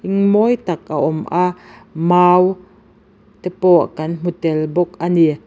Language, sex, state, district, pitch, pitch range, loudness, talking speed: Mizo, female, Mizoram, Aizawl, 175 Hz, 165-185 Hz, -16 LUFS, 145 wpm